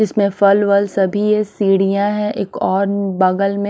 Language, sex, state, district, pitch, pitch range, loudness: Hindi, female, Himachal Pradesh, Shimla, 200 Hz, 195-205 Hz, -16 LUFS